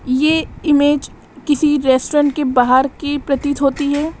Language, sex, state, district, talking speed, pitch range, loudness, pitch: Hindi, female, Uttar Pradesh, Lalitpur, 145 wpm, 275-295 Hz, -16 LUFS, 285 Hz